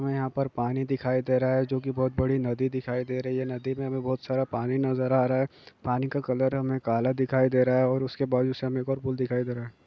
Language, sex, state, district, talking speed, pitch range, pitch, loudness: Hindi, male, Bihar, Kishanganj, 285 wpm, 125-130 Hz, 130 Hz, -27 LUFS